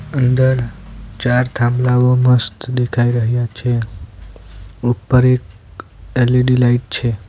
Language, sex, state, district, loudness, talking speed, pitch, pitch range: Gujarati, male, Gujarat, Valsad, -16 LUFS, 100 wpm, 120 Hz, 105-125 Hz